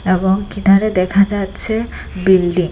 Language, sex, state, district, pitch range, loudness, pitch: Bengali, female, Assam, Hailakandi, 185-200 Hz, -15 LUFS, 195 Hz